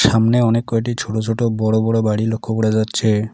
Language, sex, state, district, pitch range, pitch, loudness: Bengali, male, West Bengal, Alipurduar, 110-115 Hz, 110 Hz, -18 LUFS